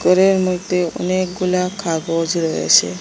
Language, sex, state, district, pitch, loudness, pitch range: Bengali, female, Assam, Hailakandi, 180 Hz, -17 LUFS, 165-185 Hz